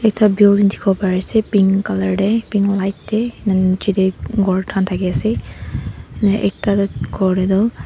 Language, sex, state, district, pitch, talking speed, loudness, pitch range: Nagamese, female, Nagaland, Dimapur, 200 Hz, 105 wpm, -17 LUFS, 190-205 Hz